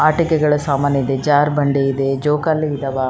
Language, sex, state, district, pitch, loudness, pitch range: Kannada, female, Karnataka, Raichur, 145 Hz, -17 LUFS, 135-150 Hz